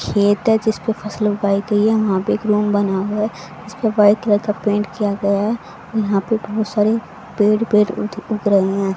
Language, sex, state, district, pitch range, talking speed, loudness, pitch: Hindi, female, Haryana, Rohtak, 205-215 Hz, 240 wpm, -18 LUFS, 210 Hz